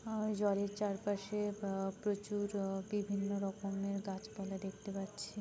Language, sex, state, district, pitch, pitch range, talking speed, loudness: Bengali, female, West Bengal, Jhargram, 200 Hz, 195-205 Hz, 120 wpm, -39 LUFS